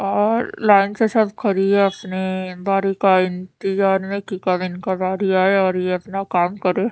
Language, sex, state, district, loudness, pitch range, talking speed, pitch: Hindi, female, Haryana, Charkhi Dadri, -19 LUFS, 185-200 Hz, 190 wpm, 195 Hz